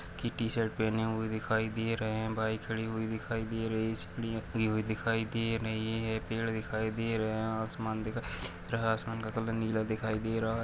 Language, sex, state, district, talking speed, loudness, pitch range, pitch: Hindi, male, Chhattisgarh, Rajnandgaon, 205 wpm, -34 LUFS, 110-115 Hz, 110 Hz